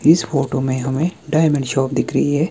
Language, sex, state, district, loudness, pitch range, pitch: Hindi, male, Himachal Pradesh, Shimla, -18 LUFS, 135-160 Hz, 145 Hz